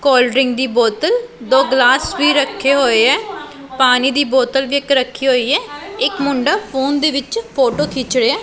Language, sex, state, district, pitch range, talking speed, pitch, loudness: Punjabi, female, Punjab, Pathankot, 255-280 Hz, 185 wpm, 265 Hz, -15 LUFS